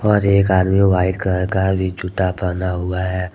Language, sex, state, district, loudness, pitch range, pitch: Hindi, male, Jharkhand, Deoghar, -18 LUFS, 90-95 Hz, 95 Hz